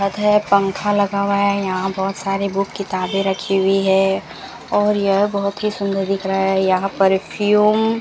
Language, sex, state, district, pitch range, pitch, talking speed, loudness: Hindi, female, Rajasthan, Bikaner, 195-205 Hz, 195 Hz, 180 wpm, -18 LUFS